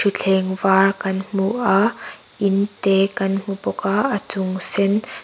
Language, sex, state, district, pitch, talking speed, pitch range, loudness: Mizo, female, Mizoram, Aizawl, 195 Hz, 160 wpm, 195-200 Hz, -19 LUFS